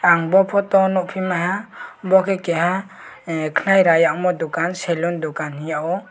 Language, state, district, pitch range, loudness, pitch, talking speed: Kokborok, Tripura, West Tripura, 165-190 Hz, -19 LUFS, 180 Hz, 155 wpm